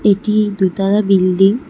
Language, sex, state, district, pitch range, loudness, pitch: Bengali, female, West Bengal, Cooch Behar, 195-210 Hz, -14 LUFS, 200 Hz